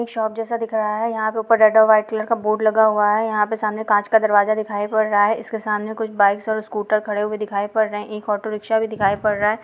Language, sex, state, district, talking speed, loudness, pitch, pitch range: Hindi, female, Bihar, Jahanabad, 300 wpm, -19 LUFS, 215 Hz, 210-220 Hz